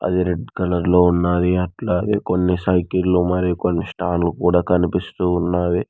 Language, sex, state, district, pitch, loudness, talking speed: Telugu, male, Telangana, Hyderabad, 90 Hz, -19 LUFS, 130 wpm